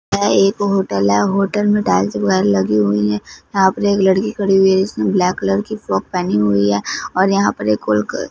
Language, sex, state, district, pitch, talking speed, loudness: Hindi, female, Punjab, Fazilka, 180 Hz, 200 wpm, -16 LUFS